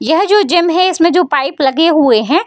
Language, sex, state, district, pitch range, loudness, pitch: Hindi, female, Bihar, Darbhanga, 285-355 Hz, -11 LUFS, 335 Hz